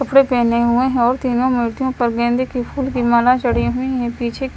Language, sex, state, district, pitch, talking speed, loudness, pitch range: Hindi, female, Himachal Pradesh, Shimla, 245 Hz, 210 wpm, -17 LUFS, 240-260 Hz